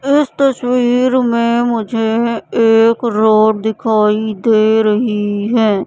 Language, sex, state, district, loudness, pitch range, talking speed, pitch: Hindi, female, Madhya Pradesh, Katni, -13 LUFS, 215-240 Hz, 100 wpm, 225 Hz